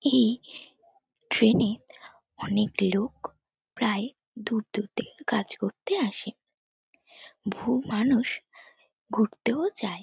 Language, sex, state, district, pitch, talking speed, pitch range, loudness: Bengali, female, West Bengal, North 24 Parganas, 230 Hz, 90 wpm, 215-260 Hz, -28 LUFS